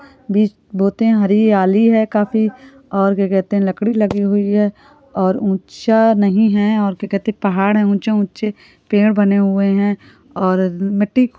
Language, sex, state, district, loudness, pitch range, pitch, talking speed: Hindi, female, Chhattisgarh, Rajnandgaon, -16 LUFS, 200-220 Hz, 205 Hz, 180 wpm